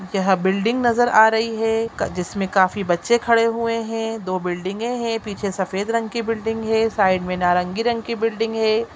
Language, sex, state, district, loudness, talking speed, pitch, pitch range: Hindi, female, Chhattisgarh, Raigarh, -20 LUFS, 195 wpm, 225 Hz, 190-230 Hz